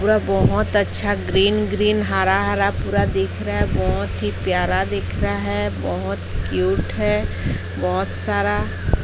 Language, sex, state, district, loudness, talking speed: Hindi, female, Odisha, Sambalpur, -20 LUFS, 145 wpm